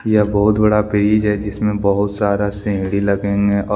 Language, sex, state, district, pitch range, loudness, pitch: Hindi, male, Jharkhand, Deoghar, 100-105 Hz, -17 LUFS, 105 Hz